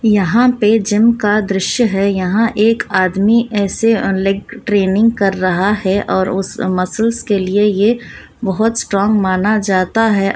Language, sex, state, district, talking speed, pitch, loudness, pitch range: Hindi, female, Bihar, Muzaffarpur, 150 wpm, 205 Hz, -14 LUFS, 195-225 Hz